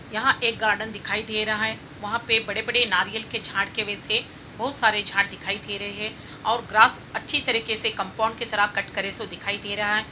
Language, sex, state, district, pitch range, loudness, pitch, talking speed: Hindi, female, Bihar, Gopalganj, 205-225 Hz, -23 LUFS, 215 Hz, 220 wpm